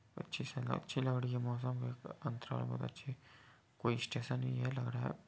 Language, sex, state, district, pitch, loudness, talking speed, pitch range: Hindi, male, Bihar, Muzaffarpur, 125 Hz, -40 LUFS, 215 wpm, 120-130 Hz